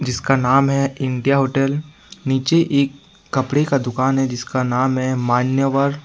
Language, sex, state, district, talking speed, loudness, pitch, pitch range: Hindi, male, Jharkhand, Ranchi, 150 wpm, -18 LUFS, 135 Hz, 130-140 Hz